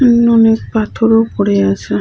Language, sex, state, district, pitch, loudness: Bengali, female, West Bengal, Jhargram, 225 Hz, -12 LUFS